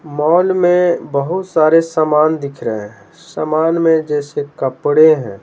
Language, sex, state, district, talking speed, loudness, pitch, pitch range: Hindi, male, Bihar, Patna, 145 wpm, -14 LUFS, 155 Hz, 140-165 Hz